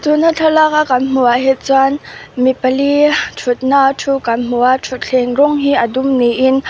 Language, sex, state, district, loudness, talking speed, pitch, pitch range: Mizo, female, Mizoram, Aizawl, -13 LUFS, 205 wpm, 265 Hz, 255-285 Hz